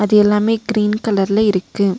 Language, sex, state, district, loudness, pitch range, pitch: Tamil, female, Tamil Nadu, Nilgiris, -16 LUFS, 200-215 Hz, 210 Hz